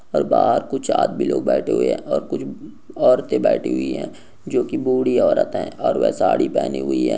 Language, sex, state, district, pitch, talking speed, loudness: Hindi, male, Uttar Pradesh, Jyotiba Phule Nagar, 295 Hz, 210 wpm, -19 LUFS